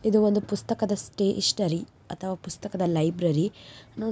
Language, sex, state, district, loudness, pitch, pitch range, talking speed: Kannada, female, Karnataka, Mysore, -27 LUFS, 195 Hz, 175-210 Hz, 100 wpm